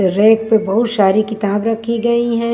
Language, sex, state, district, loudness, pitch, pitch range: Hindi, female, Maharashtra, Washim, -15 LUFS, 220 Hz, 205-230 Hz